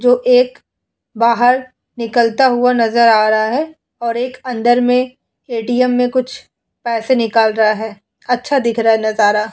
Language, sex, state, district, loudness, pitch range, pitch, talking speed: Hindi, female, Uttar Pradesh, Muzaffarnagar, -14 LUFS, 225-250 Hz, 240 Hz, 155 wpm